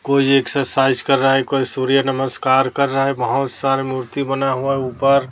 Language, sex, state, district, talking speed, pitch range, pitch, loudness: Hindi, female, Chhattisgarh, Raipur, 205 wpm, 130-135 Hz, 135 Hz, -17 LUFS